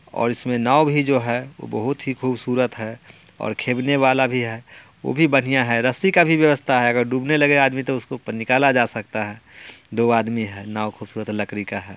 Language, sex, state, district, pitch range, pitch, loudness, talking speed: Bhojpuri, male, Bihar, Muzaffarpur, 115-135 Hz, 125 Hz, -20 LUFS, 215 wpm